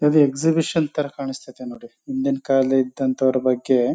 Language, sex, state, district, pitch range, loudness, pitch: Kannada, male, Karnataka, Chamarajanagar, 130-150 Hz, -21 LUFS, 135 Hz